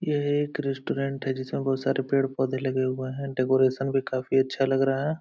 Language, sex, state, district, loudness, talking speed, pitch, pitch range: Hindi, male, Uttar Pradesh, Hamirpur, -26 LUFS, 205 wpm, 135 Hz, 130-135 Hz